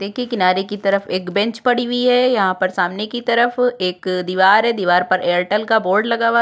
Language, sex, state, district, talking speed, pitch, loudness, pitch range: Hindi, female, Chhattisgarh, Korba, 225 wpm, 205 Hz, -17 LUFS, 185-240 Hz